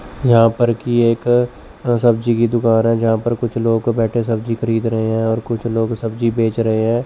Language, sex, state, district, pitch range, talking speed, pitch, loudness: Hindi, male, Chandigarh, Chandigarh, 115-120 Hz, 210 wpm, 115 Hz, -17 LUFS